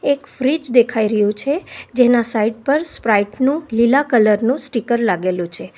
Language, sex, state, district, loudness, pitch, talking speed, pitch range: Gujarati, female, Gujarat, Valsad, -17 LUFS, 240 Hz, 165 wpm, 215-275 Hz